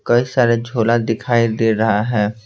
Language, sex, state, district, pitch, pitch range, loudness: Hindi, male, Bihar, Patna, 115 Hz, 110-120 Hz, -17 LUFS